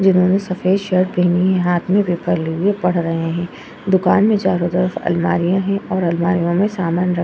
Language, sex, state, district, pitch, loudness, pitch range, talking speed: Hindi, female, Uttar Pradesh, Jyotiba Phule Nagar, 180 Hz, -17 LUFS, 175-190 Hz, 200 wpm